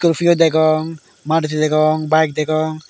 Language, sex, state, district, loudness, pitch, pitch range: Chakma, male, Tripura, Dhalai, -16 LUFS, 155 Hz, 155-160 Hz